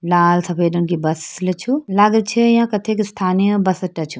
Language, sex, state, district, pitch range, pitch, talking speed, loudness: Hindi, female, Uttarakhand, Uttarkashi, 175-210 Hz, 185 Hz, 200 wpm, -17 LUFS